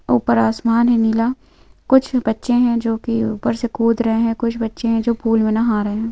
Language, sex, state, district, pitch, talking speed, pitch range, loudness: Hindi, female, Chhattisgarh, Bilaspur, 230 Hz, 215 wpm, 225-235 Hz, -18 LUFS